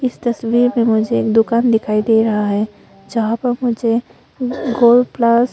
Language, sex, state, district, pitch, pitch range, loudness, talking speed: Hindi, female, Arunachal Pradesh, Longding, 235 Hz, 225-240 Hz, -16 LUFS, 175 wpm